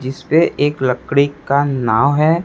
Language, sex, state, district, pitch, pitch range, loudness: Hindi, male, Chhattisgarh, Raipur, 140 Hz, 130-145 Hz, -16 LUFS